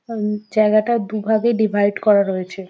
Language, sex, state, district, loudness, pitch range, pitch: Bengali, female, West Bengal, Jhargram, -18 LUFS, 205-220 Hz, 215 Hz